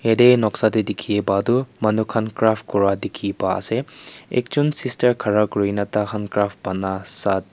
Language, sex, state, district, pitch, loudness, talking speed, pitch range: Nagamese, male, Nagaland, Kohima, 105 Hz, -20 LUFS, 160 wpm, 100-120 Hz